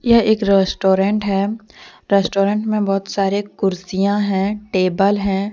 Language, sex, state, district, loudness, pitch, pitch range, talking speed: Hindi, female, Jharkhand, Deoghar, -18 LUFS, 200 Hz, 195-205 Hz, 130 wpm